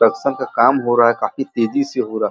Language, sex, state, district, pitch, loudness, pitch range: Hindi, male, Uttar Pradesh, Muzaffarnagar, 120 Hz, -17 LUFS, 110-135 Hz